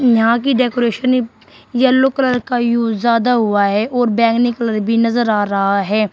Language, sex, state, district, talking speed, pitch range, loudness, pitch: Hindi, female, Uttar Pradesh, Shamli, 175 wpm, 220-245 Hz, -15 LUFS, 235 Hz